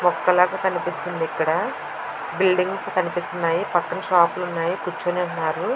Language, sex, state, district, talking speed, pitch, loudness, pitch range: Telugu, female, Andhra Pradesh, Visakhapatnam, 125 wpm, 180 Hz, -22 LUFS, 175-185 Hz